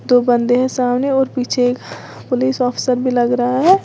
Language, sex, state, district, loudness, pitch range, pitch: Hindi, female, Uttar Pradesh, Lalitpur, -16 LUFS, 245-260 Hz, 250 Hz